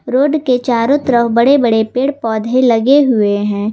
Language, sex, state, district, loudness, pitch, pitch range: Hindi, female, Jharkhand, Garhwa, -13 LUFS, 240 Hz, 225-270 Hz